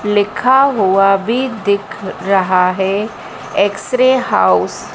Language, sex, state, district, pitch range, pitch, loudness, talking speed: Hindi, female, Madhya Pradesh, Dhar, 190-250 Hz, 200 Hz, -14 LUFS, 120 wpm